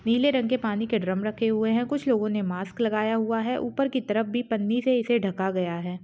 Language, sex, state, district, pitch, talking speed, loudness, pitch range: Hindi, female, Chhattisgarh, Rajnandgaon, 225 Hz, 260 wpm, -26 LUFS, 210-240 Hz